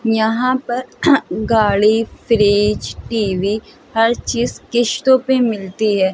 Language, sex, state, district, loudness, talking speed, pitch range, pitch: Hindi, female, Uttar Pradesh, Hamirpur, -16 LUFS, 110 wpm, 210-245 Hz, 225 Hz